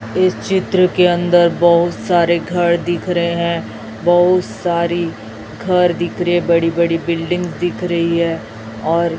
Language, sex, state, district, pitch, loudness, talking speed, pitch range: Hindi, female, Chhattisgarh, Raipur, 170 Hz, -16 LUFS, 155 wpm, 170-175 Hz